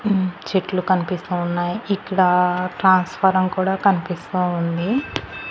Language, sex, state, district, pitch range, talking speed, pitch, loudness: Telugu, female, Andhra Pradesh, Annamaya, 180-190 Hz, 100 wpm, 185 Hz, -20 LUFS